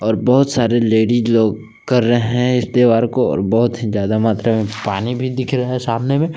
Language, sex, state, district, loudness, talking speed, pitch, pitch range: Hindi, male, Jharkhand, Palamu, -16 LUFS, 225 wpm, 115 Hz, 110-125 Hz